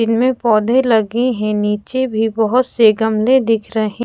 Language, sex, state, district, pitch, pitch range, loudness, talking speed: Hindi, female, Odisha, Khordha, 225 Hz, 215-245 Hz, -15 LUFS, 165 wpm